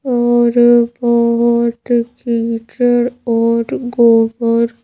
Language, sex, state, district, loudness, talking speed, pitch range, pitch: Hindi, female, Madhya Pradesh, Bhopal, -14 LUFS, 85 wpm, 230-240 Hz, 235 Hz